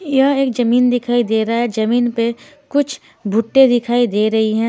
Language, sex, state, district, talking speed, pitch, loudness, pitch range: Hindi, female, Himachal Pradesh, Shimla, 190 wpm, 240 Hz, -16 LUFS, 225-265 Hz